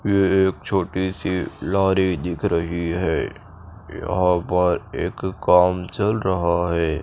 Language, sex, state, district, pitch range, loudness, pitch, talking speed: Hindi, male, Chandigarh, Chandigarh, 85-95 Hz, -21 LUFS, 90 Hz, 130 wpm